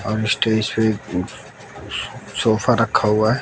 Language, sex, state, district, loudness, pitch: Hindi, male, Bihar, West Champaran, -20 LUFS, 110 Hz